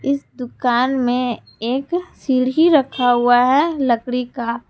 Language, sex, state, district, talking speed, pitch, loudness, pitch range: Hindi, female, Jharkhand, Palamu, 140 wpm, 250 Hz, -18 LUFS, 245-275 Hz